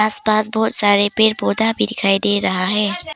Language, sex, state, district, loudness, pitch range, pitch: Hindi, female, Arunachal Pradesh, Papum Pare, -16 LUFS, 205-220 Hz, 215 Hz